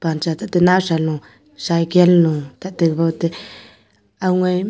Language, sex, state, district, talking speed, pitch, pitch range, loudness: Wancho, female, Arunachal Pradesh, Longding, 100 wpm, 165 Hz, 155-180 Hz, -17 LUFS